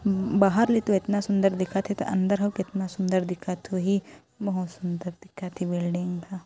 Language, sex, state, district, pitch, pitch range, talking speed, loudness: Hindi, female, Chhattisgarh, Korba, 190 Hz, 180-200 Hz, 195 wpm, -26 LUFS